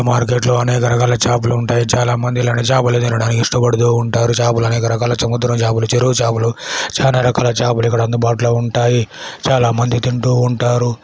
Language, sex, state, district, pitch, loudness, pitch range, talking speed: Telugu, male, Andhra Pradesh, Chittoor, 120 Hz, -15 LUFS, 120-125 Hz, 145 wpm